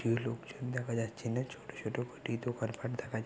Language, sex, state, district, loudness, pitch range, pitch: Bengali, female, West Bengal, Jhargram, -38 LUFS, 115-125 Hz, 120 Hz